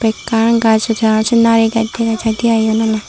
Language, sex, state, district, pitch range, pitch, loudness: Chakma, female, Tripura, Dhalai, 220-230 Hz, 225 Hz, -13 LUFS